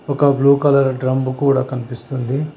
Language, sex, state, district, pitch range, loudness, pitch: Telugu, male, Telangana, Hyderabad, 130-140 Hz, -17 LUFS, 135 Hz